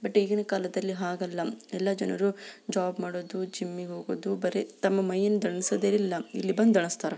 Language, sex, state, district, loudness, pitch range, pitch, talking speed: Kannada, female, Karnataka, Belgaum, -29 LUFS, 180-200 Hz, 190 Hz, 150 wpm